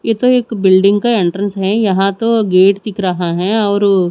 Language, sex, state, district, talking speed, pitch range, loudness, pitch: Hindi, female, Chhattisgarh, Raipur, 205 wpm, 190-220 Hz, -13 LUFS, 200 Hz